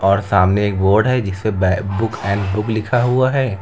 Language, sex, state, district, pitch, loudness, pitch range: Hindi, male, Uttar Pradesh, Lucknow, 105 Hz, -17 LUFS, 100-115 Hz